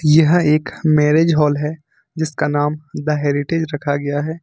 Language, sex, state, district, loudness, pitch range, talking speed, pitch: Hindi, male, Jharkhand, Ranchi, -17 LUFS, 145-160 Hz, 160 wpm, 150 Hz